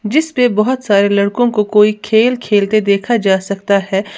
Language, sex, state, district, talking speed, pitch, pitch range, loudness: Hindi, female, Uttar Pradesh, Lalitpur, 170 wpm, 210 Hz, 200-240 Hz, -13 LUFS